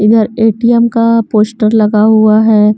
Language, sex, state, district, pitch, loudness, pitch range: Hindi, female, Bihar, West Champaran, 220 Hz, -9 LUFS, 215-230 Hz